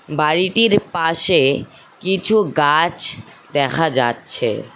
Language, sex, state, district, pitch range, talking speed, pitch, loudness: Bengali, male, West Bengal, Cooch Behar, 145-190 Hz, 75 wpm, 165 Hz, -17 LUFS